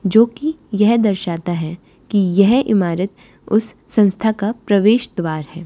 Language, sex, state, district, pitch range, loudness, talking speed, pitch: Hindi, female, Haryana, Charkhi Dadri, 180-225 Hz, -17 LUFS, 150 wpm, 205 Hz